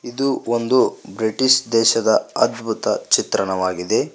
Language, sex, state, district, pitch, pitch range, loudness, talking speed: Kannada, male, Karnataka, Koppal, 115 Hz, 110-130 Hz, -18 LUFS, 85 wpm